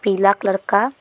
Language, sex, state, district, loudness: Hindi, female, Jharkhand, Deoghar, -18 LUFS